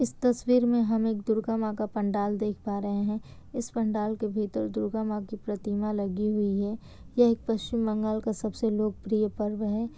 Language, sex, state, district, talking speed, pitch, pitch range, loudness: Hindi, female, Bihar, Kishanganj, 200 wpm, 215 Hz, 210-225 Hz, -29 LUFS